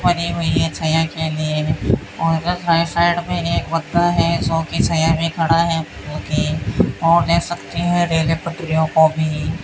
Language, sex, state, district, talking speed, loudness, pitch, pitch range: Hindi, male, Rajasthan, Bikaner, 155 wpm, -18 LUFS, 165 Hz, 160-170 Hz